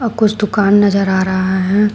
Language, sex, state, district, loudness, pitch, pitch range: Hindi, female, Uttar Pradesh, Shamli, -14 LUFS, 200 Hz, 190-210 Hz